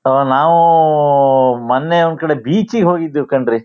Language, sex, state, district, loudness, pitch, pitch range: Kannada, male, Karnataka, Shimoga, -13 LUFS, 150 Hz, 130-165 Hz